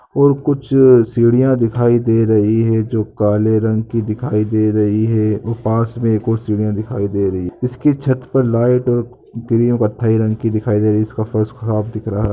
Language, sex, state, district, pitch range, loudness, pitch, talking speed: Hindi, male, Maharashtra, Chandrapur, 110-120 Hz, -16 LUFS, 115 Hz, 210 wpm